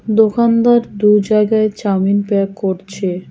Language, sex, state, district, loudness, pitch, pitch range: Bengali, female, West Bengal, Cooch Behar, -14 LUFS, 210 Hz, 195-220 Hz